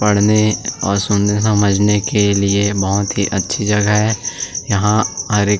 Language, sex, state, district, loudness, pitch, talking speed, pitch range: Hindi, male, Chhattisgarh, Sukma, -15 LUFS, 105 Hz, 160 wpm, 100-105 Hz